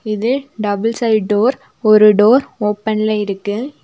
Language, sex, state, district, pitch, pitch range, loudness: Tamil, female, Tamil Nadu, Nilgiris, 215 Hz, 210-235 Hz, -15 LUFS